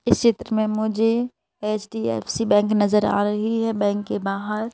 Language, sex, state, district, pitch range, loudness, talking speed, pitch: Hindi, female, Madhya Pradesh, Bhopal, 205-225 Hz, -22 LUFS, 165 wpm, 215 Hz